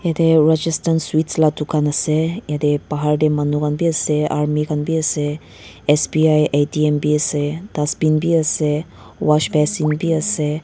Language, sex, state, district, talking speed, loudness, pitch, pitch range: Nagamese, female, Nagaland, Dimapur, 165 wpm, -18 LUFS, 150 Hz, 150-160 Hz